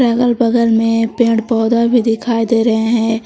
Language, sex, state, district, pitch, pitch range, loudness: Hindi, female, Jharkhand, Palamu, 230 Hz, 225-235 Hz, -14 LUFS